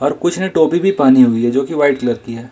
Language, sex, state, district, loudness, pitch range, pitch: Hindi, male, Jharkhand, Ranchi, -14 LUFS, 120-165 Hz, 135 Hz